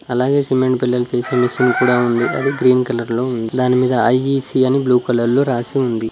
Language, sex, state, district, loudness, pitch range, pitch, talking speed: Telugu, male, Telangana, Mahabubabad, -16 LUFS, 120-130 Hz, 125 Hz, 205 wpm